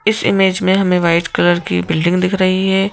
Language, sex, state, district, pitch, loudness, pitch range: Hindi, female, Madhya Pradesh, Bhopal, 185 Hz, -14 LUFS, 175-190 Hz